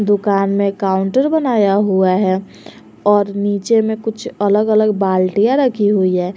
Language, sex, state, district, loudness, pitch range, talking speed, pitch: Hindi, female, Jharkhand, Garhwa, -15 LUFS, 190-215 Hz, 150 wpm, 205 Hz